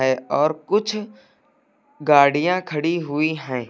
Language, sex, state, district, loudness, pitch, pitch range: Hindi, male, Uttar Pradesh, Lucknow, -20 LUFS, 160 Hz, 145-215 Hz